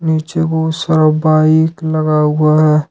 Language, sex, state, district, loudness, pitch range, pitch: Hindi, male, Jharkhand, Ranchi, -13 LUFS, 155-160 Hz, 155 Hz